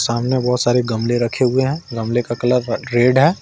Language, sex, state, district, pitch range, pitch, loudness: Hindi, male, Jharkhand, Ranchi, 120-130 Hz, 125 Hz, -17 LUFS